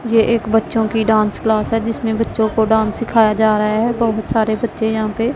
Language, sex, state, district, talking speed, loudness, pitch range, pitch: Hindi, female, Punjab, Pathankot, 235 wpm, -16 LUFS, 220-230 Hz, 220 Hz